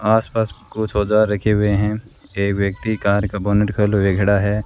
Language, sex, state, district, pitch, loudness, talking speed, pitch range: Hindi, female, Rajasthan, Bikaner, 105 Hz, -19 LUFS, 195 wpm, 100-110 Hz